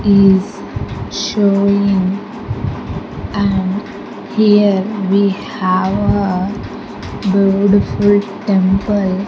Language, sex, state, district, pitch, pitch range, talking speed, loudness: English, female, Andhra Pradesh, Sri Satya Sai, 200 Hz, 195-205 Hz, 60 wpm, -15 LUFS